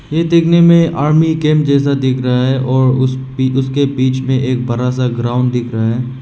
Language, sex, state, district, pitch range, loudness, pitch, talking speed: Hindi, male, Meghalaya, West Garo Hills, 125-145 Hz, -13 LUFS, 130 Hz, 210 wpm